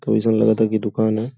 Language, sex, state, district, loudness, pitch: Bhojpuri, male, Uttar Pradesh, Gorakhpur, -19 LUFS, 110 Hz